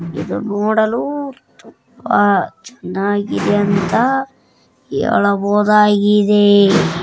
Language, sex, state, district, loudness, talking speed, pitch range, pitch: Kannada, female, Karnataka, Dharwad, -15 LUFS, 50 wpm, 200-220 Hz, 205 Hz